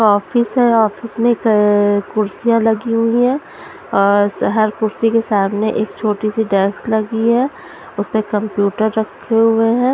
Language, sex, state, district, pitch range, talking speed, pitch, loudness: Hindi, female, Punjab, Pathankot, 210-230 Hz, 150 wpm, 220 Hz, -16 LUFS